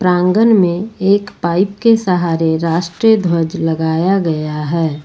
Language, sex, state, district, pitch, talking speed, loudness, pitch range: Hindi, female, Uttar Pradesh, Lucknow, 175 Hz, 130 wpm, -14 LUFS, 165-200 Hz